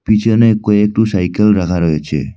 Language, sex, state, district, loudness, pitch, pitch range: Bengali, male, Assam, Hailakandi, -13 LUFS, 105 Hz, 90-110 Hz